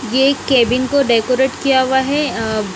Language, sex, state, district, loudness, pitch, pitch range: Hindi, female, Punjab, Kapurthala, -15 LUFS, 260 Hz, 235-270 Hz